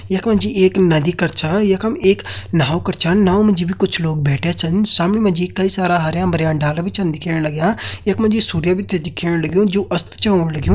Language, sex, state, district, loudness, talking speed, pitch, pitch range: Hindi, male, Uttarakhand, Uttarkashi, -16 LUFS, 250 wpm, 180 Hz, 170-200 Hz